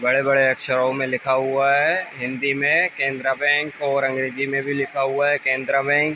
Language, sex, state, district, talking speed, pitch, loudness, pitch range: Hindi, male, Uttar Pradesh, Ghazipur, 195 wpm, 135 Hz, -20 LUFS, 130-140 Hz